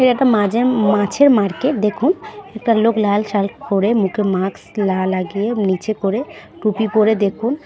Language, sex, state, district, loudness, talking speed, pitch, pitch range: Bengali, female, West Bengal, Purulia, -17 LUFS, 155 wpm, 215 Hz, 200-245 Hz